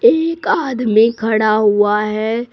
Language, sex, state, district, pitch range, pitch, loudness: Hindi, female, Uttar Pradesh, Lucknow, 215-305 Hz, 225 Hz, -15 LUFS